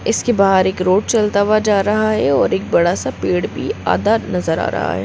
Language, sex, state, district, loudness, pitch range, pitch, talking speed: Hindi, female, Bihar, Gopalganj, -16 LUFS, 195-215 Hz, 210 Hz, 250 wpm